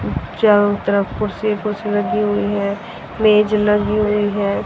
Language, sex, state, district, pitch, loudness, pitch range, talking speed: Hindi, female, Haryana, Rohtak, 210 Hz, -17 LUFS, 205-210 Hz, 140 wpm